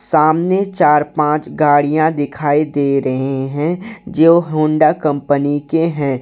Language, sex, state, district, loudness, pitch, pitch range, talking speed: Hindi, male, Jharkhand, Garhwa, -15 LUFS, 150 Hz, 145-160 Hz, 125 wpm